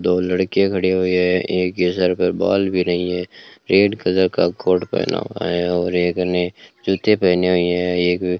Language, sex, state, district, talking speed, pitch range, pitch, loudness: Hindi, male, Rajasthan, Bikaner, 205 wpm, 90-95 Hz, 90 Hz, -18 LUFS